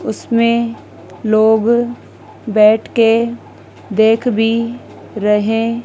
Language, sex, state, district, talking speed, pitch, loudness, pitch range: Hindi, female, Madhya Pradesh, Dhar, 70 wpm, 225 Hz, -14 LUFS, 220-235 Hz